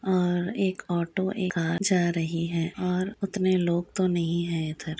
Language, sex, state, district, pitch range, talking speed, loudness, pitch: Hindi, female, Uttar Pradesh, Gorakhpur, 170-185 Hz, 180 wpm, -27 LUFS, 175 Hz